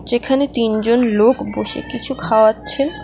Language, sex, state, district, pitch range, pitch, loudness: Bengali, female, West Bengal, Alipurduar, 225-270 Hz, 240 Hz, -16 LUFS